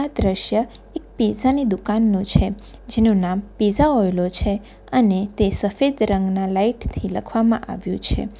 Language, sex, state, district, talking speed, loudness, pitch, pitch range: Gujarati, female, Gujarat, Valsad, 130 wpm, -20 LUFS, 215 Hz, 195-235 Hz